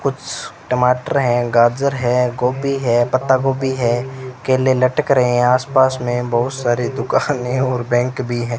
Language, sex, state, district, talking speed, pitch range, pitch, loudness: Hindi, male, Rajasthan, Bikaner, 165 wpm, 120-130 Hz, 125 Hz, -17 LUFS